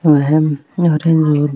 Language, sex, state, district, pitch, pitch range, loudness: Marwari, female, Rajasthan, Nagaur, 155 Hz, 145-160 Hz, -14 LUFS